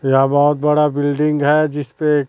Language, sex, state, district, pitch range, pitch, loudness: Hindi, female, Chhattisgarh, Raipur, 145-150 Hz, 145 Hz, -16 LUFS